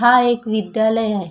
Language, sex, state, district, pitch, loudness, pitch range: Marathi, female, Maharashtra, Chandrapur, 220 Hz, -17 LUFS, 215-240 Hz